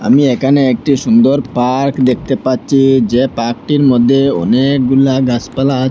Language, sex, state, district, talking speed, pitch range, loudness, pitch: Bengali, male, Assam, Hailakandi, 150 wpm, 125-140 Hz, -12 LUFS, 135 Hz